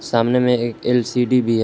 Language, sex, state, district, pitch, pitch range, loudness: Hindi, male, Jharkhand, Palamu, 120 Hz, 115-125 Hz, -18 LUFS